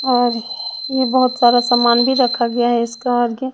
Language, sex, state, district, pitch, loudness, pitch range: Hindi, female, Chhattisgarh, Raipur, 245 Hz, -16 LUFS, 240-255 Hz